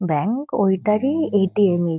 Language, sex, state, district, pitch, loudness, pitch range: Bengali, female, West Bengal, Kolkata, 200 Hz, -20 LUFS, 180-225 Hz